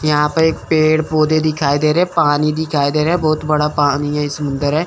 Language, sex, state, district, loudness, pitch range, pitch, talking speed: Hindi, male, Chandigarh, Chandigarh, -15 LUFS, 145-155 Hz, 150 Hz, 220 wpm